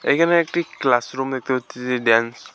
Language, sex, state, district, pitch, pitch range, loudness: Bengali, male, West Bengal, Alipurduar, 130 Hz, 120-155 Hz, -20 LUFS